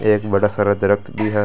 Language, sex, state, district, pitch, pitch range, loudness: Hindi, male, Delhi, New Delhi, 105 Hz, 100-105 Hz, -18 LUFS